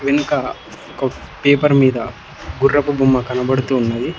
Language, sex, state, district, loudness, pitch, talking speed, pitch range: Telugu, male, Telangana, Hyderabad, -17 LUFS, 135 Hz, 115 wpm, 130-140 Hz